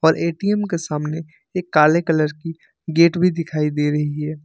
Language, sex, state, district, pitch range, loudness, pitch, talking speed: Hindi, male, Jharkhand, Ranchi, 150-170 Hz, -19 LUFS, 160 Hz, 190 wpm